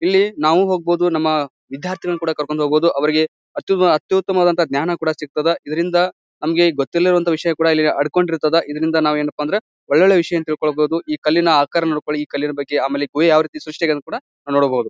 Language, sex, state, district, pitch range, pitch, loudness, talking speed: Kannada, male, Karnataka, Bijapur, 150-175 Hz, 160 Hz, -17 LUFS, 165 wpm